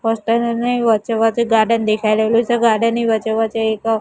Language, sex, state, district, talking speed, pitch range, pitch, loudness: Gujarati, female, Gujarat, Gandhinagar, 195 wpm, 220-230 Hz, 225 Hz, -16 LUFS